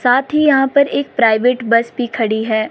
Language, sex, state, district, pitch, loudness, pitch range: Hindi, female, Himachal Pradesh, Shimla, 245 Hz, -15 LUFS, 230-270 Hz